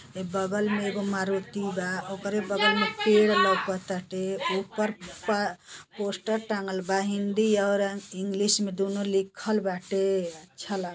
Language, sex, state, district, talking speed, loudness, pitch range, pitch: Bhojpuri, female, Uttar Pradesh, Gorakhpur, 140 wpm, -27 LUFS, 190-210 Hz, 200 Hz